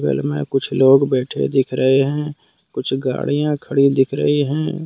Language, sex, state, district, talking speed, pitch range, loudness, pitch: Hindi, male, Jharkhand, Deoghar, 160 wpm, 130-145 Hz, -18 LUFS, 135 Hz